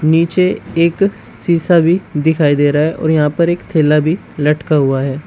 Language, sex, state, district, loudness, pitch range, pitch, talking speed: Hindi, male, Uttar Pradesh, Shamli, -14 LUFS, 150-170 Hz, 160 Hz, 195 wpm